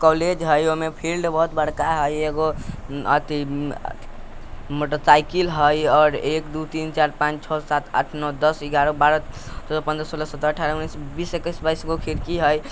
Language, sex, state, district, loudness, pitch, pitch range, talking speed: Bajjika, male, Bihar, Vaishali, -21 LUFS, 155 Hz, 150-160 Hz, 170 wpm